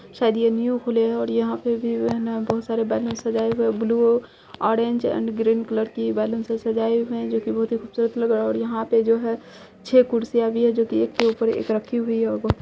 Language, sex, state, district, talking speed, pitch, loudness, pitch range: Hindi, female, Bihar, Saharsa, 265 wpm, 230 Hz, -22 LUFS, 220-230 Hz